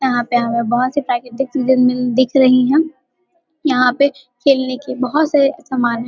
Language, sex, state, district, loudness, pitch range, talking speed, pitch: Hindi, female, Bihar, Vaishali, -16 LUFS, 250-285 Hz, 160 wpm, 260 Hz